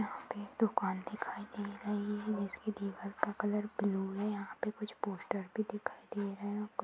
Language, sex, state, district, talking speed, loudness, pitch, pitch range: Hindi, female, Bihar, Saharsa, 200 wpm, -38 LUFS, 210 Hz, 200-215 Hz